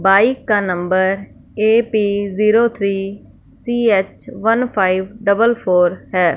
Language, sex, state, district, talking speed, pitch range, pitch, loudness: Hindi, female, Punjab, Fazilka, 115 wpm, 190-225 Hz, 200 Hz, -16 LUFS